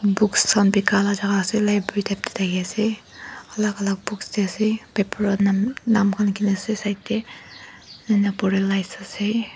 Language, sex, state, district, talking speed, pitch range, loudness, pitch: Nagamese, female, Nagaland, Dimapur, 195 wpm, 200-215 Hz, -22 LUFS, 205 Hz